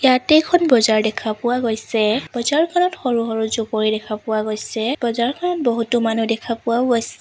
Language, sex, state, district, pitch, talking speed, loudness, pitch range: Assamese, female, Assam, Sonitpur, 235 Hz, 160 wpm, -19 LUFS, 220-255 Hz